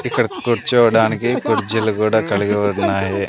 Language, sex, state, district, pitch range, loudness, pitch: Telugu, male, Andhra Pradesh, Sri Satya Sai, 100-115 Hz, -17 LUFS, 110 Hz